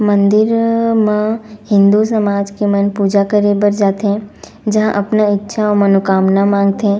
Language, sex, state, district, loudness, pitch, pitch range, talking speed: Chhattisgarhi, female, Chhattisgarh, Raigarh, -13 LUFS, 205 Hz, 200-215 Hz, 130 wpm